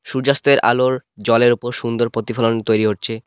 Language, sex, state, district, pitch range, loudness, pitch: Bengali, male, West Bengal, Cooch Behar, 115-130 Hz, -17 LUFS, 120 Hz